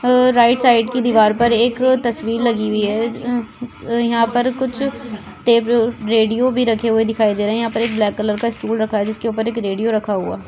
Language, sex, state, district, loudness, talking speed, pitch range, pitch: Hindi, female, Goa, North and South Goa, -17 LUFS, 230 wpm, 220-245 Hz, 230 Hz